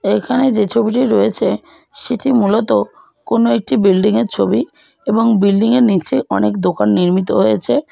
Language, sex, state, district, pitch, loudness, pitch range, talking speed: Bengali, female, West Bengal, Jalpaiguri, 220 Hz, -14 LUFS, 190-245 Hz, 145 wpm